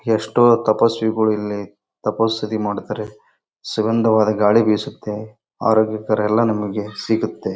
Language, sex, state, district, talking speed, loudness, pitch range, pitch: Kannada, male, Karnataka, Bellary, 105 wpm, -19 LUFS, 105-110 Hz, 110 Hz